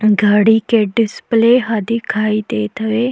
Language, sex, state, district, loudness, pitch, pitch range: Chhattisgarhi, female, Chhattisgarh, Jashpur, -15 LUFS, 220 Hz, 215-230 Hz